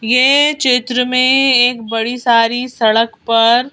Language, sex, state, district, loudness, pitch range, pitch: Hindi, female, Madhya Pradesh, Bhopal, -12 LUFS, 230-255 Hz, 245 Hz